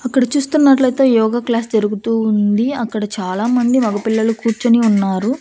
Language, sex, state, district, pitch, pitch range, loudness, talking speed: Telugu, female, Andhra Pradesh, Annamaya, 230 Hz, 215-250 Hz, -15 LUFS, 135 wpm